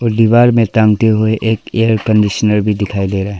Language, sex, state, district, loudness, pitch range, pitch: Hindi, female, Arunachal Pradesh, Lower Dibang Valley, -13 LUFS, 105-115 Hz, 110 Hz